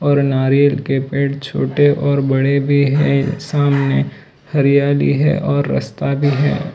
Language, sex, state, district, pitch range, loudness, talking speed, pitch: Hindi, male, Gujarat, Valsad, 135-145 Hz, -16 LUFS, 140 wpm, 140 Hz